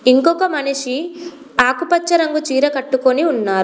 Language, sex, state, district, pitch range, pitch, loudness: Telugu, female, Telangana, Komaram Bheem, 260-335 Hz, 285 Hz, -16 LUFS